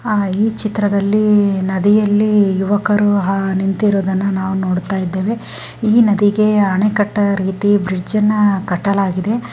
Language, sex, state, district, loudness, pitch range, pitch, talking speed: Kannada, female, Karnataka, Dharwad, -15 LUFS, 190-210 Hz, 205 Hz, 95 wpm